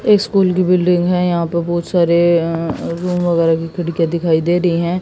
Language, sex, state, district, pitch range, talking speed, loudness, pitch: Hindi, female, Haryana, Jhajjar, 170-180 Hz, 205 wpm, -15 LUFS, 175 Hz